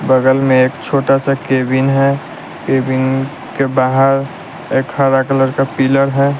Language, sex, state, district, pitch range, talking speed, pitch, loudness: Hindi, male, Bihar, West Champaran, 130-135 Hz, 150 wpm, 135 Hz, -14 LUFS